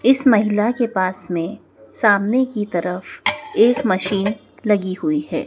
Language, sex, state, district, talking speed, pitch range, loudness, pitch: Hindi, female, Madhya Pradesh, Dhar, 145 wpm, 185-235 Hz, -19 LUFS, 205 Hz